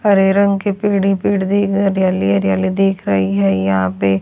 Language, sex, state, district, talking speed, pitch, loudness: Hindi, female, Haryana, Charkhi Dadri, 240 wpm, 195 Hz, -15 LUFS